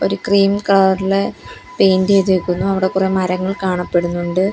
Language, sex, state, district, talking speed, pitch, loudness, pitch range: Malayalam, female, Kerala, Kollam, 120 wpm, 190 Hz, -16 LUFS, 185-195 Hz